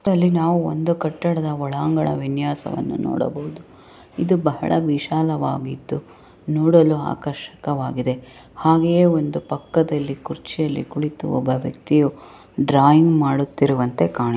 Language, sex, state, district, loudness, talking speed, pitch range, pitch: Kannada, female, Karnataka, Raichur, -20 LUFS, 90 wpm, 140-160 Hz, 150 Hz